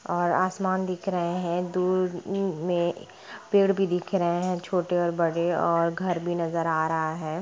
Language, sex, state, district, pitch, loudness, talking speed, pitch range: Hindi, female, Bihar, Gopalganj, 175 Hz, -26 LUFS, 185 wpm, 170-185 Hz